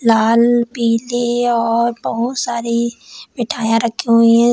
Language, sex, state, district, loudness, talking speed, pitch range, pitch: Hindi, female, Uttar Pradesh, Lalitpur, -16 LUFS, 130 wpm, 230-240 Hz, 235 Hz